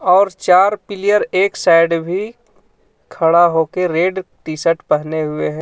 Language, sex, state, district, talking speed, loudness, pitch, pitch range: Hindi, male, Jharkhand, Ranchi, 140 wpm, -15 LUFS, 180 Hz, 165-200 Hz